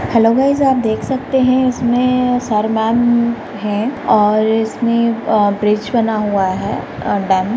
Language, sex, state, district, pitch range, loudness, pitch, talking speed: Hindi, female, Bihar, Madhepura, 210-250 Hz, -15 LUFS, 230 Hz, 150 wpm